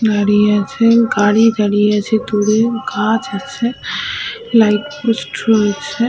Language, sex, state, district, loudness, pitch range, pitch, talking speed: Bengali, female, West Bengal, Malda, -15 LUFS, 210-235 Hz, 220 Hz, 100 wpm